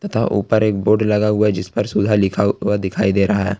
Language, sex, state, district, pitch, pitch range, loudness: Hindi, male, Jharkhand, Ranchi, 105 Hz, 100-105 Hz, -17 LUFS